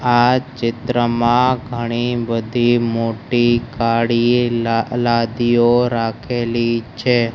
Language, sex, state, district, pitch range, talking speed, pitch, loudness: Gujarati, male, Gujarat, Gandhinagar, 115-120 Hz, 80 wpm, 120 Hz, -17 LUFS